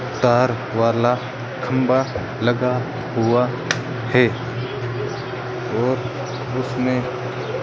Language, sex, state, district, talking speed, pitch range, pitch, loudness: Hindi, male, Rajasthan, Bikaner, 70 wpm, 125-130 Hz, 125 Hz, -21 LUFS